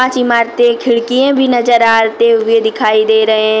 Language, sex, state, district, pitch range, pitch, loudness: Hindi, female, Jharkhand, Deoghar, 225-260 Hz, 240 Hz, -11 LUFS